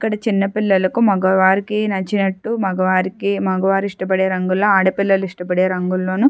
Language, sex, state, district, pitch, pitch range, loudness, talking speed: Telugu, female, Andhra Pradesh, Chittoor, 190 Hz, 185-200 Hz, -17 LUFS, 125 wpm